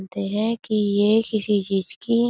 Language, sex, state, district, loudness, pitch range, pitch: Hindi, female, Uttar Pradesh, Budaun, -22 LUFS, 200-225 Hz, 210 Hz